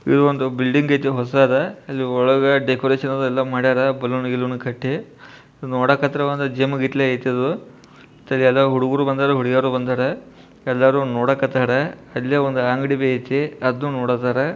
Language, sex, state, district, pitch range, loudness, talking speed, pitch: Kannada, male, Karnataka, Bijapur, 130-140 Hz, -19 LUFS, 125 wpm, 130 Hz